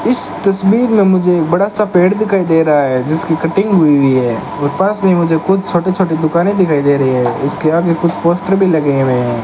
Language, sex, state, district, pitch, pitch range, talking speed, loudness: Hindi, male, Rajasthan, Bikaner, 170 Hz, 145-195 Hz, 230 wpm, -13 LUFS